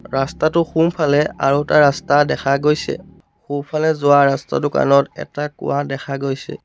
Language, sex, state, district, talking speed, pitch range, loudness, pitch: Assamese, male, Assam, Sonitpur, 145 wpm, 140-155 Hz, -17 LUFS, 145 Hz